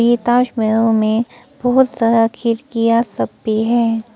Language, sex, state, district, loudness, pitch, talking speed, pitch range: Hindi, female, Arunachal Pradesh, Papum Pare, -16 LUFS, 230 Hz, 130 wpm, 225-245 Hz